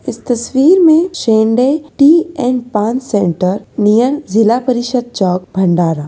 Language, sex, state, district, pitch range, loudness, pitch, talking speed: Hindi, female, Maharashtra, Solapur, 205-270 Hz, -12 LUFS, 240 Hz, 130 wpm